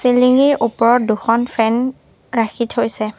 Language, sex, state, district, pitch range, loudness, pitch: Assamese, female, Assam, Sonitpur, 225-250 Hz, -16 LUFS, 235 Hz